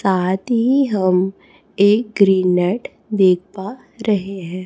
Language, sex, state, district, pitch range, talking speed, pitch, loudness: Hindi, female, Chhattisgarh, Raipur, 185-215 Hz, 115 wpm, 195 Hz, -17 LUFS